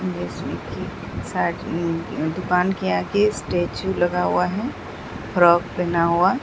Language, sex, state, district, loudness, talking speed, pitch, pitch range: Hindi, female, Bihar, Katihar, -22 LUFS, 110 wpm, 175 Hz, 155-180 Hz